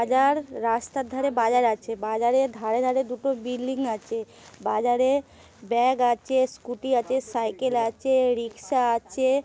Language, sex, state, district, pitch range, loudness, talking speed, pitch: Bengali, female, West Bengal, Paschim Medinipur, 230-265 Hz, -25 LUFS, 125 wpm, 250 Hz